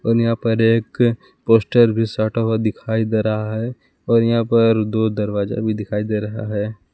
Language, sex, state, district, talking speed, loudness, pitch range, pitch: Hindi, male, Jharkhand, Palamu, 190 wpm, -19 LUFS, 110-115 Hz, 110 Hz